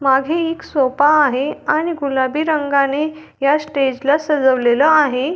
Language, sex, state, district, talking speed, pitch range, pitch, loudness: Marathi, female, Maharashtra, Dhule, 135 wpm, 270-305 Hz, 290 Hz, -16 LUFS